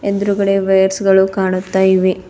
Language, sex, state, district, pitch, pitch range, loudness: Kannada, female, Karnataka, Bidar, 190 Hz, 190-195 Hz, -14 LUFS